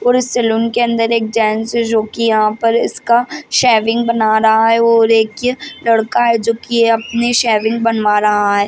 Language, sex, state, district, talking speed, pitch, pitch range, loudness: Hindi, female, Bihar, Madhepura, 195 wpm, 230 Hz, 220-235 Hz, -13 LUFS